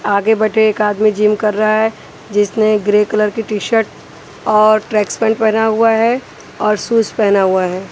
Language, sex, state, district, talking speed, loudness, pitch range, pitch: Hindi, female, Haryana, Charkhi Dadri, 190 wpm, -14 LUFS, 210-220 Hz, 215 Hz